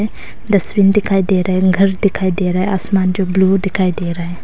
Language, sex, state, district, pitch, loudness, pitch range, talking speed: Hindi, female, Arunachal Pradesh, Longding, 190 Hz, -15 LUFS, 185-195 Hz, 230 wpm